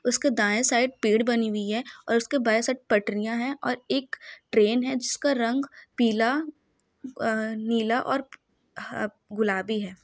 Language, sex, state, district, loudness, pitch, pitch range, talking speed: Hindi, female, Jharkhand, Sahebganj, -25 LUFS, 230 Hz, 220-260 Hz, 160 wpm